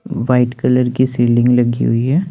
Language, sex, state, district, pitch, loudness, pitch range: Hindi, male, Chandigarh, Chandigarh, 125 Hz, -14 LUFS, 120-130 Hz